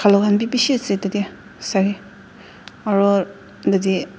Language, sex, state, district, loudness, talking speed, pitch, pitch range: Nagamese, female, Nagaland, Dimapur, -19 LUFS, 130 wpm, 200 Hz, 195-205 Hz